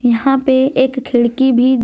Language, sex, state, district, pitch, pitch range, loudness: Hindi, female, Jharkhand, Deoghar, 260 Hz, 245-265 Hz, -13 LUFS